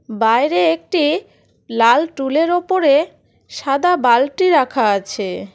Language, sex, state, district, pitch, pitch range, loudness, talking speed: Bengali, female, West Bengal, Cooch Behar, 280 Hz, 230-335 Hz, -16 LUFS, 110 wpm